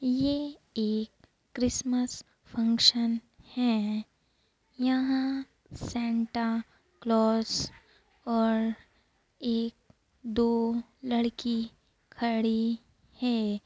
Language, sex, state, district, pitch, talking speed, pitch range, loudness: Hindi, female, Uttar Pradesh, Ghazipur, 235 Hz, 60 wpm, 225-250 Hz, -29 LUFS